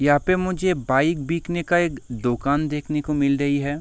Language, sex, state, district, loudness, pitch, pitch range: Hindi, male, Bihar, Sitamarhi, -22 LUFS, 150 Hz, 140-170 Hz